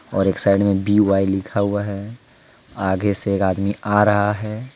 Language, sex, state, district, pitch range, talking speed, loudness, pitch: Hindi, male, Jharkhand, Deoghar, 100-105 Hz, 200 wpm, -19 LUFS, 100 Hz